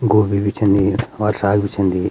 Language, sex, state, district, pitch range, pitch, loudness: Garhwali, male, Uttarakhand, Uttarkashi, 100-105 Hz, 100 Hz, -17 LUFS